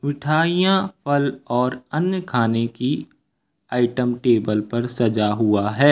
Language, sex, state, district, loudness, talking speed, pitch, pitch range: Hindi, male, Uttar Pradesh, Lucknow, -21 LUFS, 120 wpm, 125 Hz, 115-145 Hz